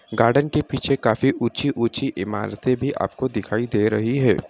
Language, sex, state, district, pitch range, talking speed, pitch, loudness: Hindi, male, Bihar, Madhepura, 110-135 Hz, 175 wpm, 120 Hz, -22 LUFS